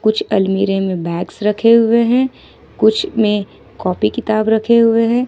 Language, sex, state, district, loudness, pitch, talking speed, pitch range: Hindi, female, Jharkhand, Ranchi, -15 LUFS, 215 Hz, 160 wpm, 200-230 Hz